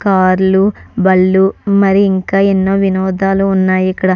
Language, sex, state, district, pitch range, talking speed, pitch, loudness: Telugu, female, Andhra Pradesh, Krishna, 190-195 Hz, 115 wpm, 190 Hz, -12 LUFS